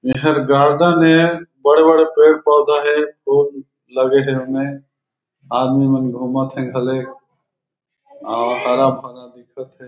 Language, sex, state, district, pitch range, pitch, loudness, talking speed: Chhattisgarhi, male, Chhattisgarh, Raigarh, 130-150 Hz, 135 Hz, -15 LUFS, 115 wpm